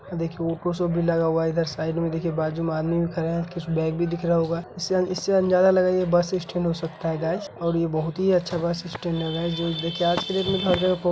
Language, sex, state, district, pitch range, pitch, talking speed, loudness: Hindi, female, Bihar, Gaya, 165-180 Hz, 170 Hz, 275 wpm, -24 LUFS